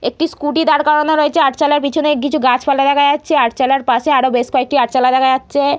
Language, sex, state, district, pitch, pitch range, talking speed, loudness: Bengali, female, West Bengal, Purulia, 285 Hz, 260-300 Hz, 185 wpm, -14 LUFS